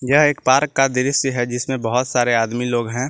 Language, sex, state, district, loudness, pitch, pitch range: Hindi, male, Jharkhand, Garhwa, -18 LUFS, 130 Hz, 120-135 Hz